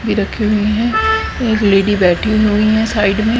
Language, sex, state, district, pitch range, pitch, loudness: Hindi, female, Haryana, Rohtak, 205-225 Hz, 215 Hz, -14 LUFS